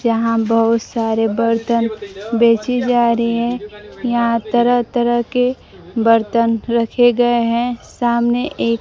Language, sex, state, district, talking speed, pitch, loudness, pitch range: Hindi, female, Bihar, Kaimur, 125 wpm, 235 Hz, -16 LUFS, 230-240 Hz